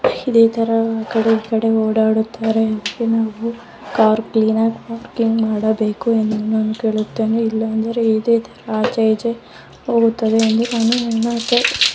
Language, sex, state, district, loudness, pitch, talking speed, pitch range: Kannada, female, Karnataka, Dharwad, -17 LUFS, 225 Hz, 105 wpm, 220-230 Hz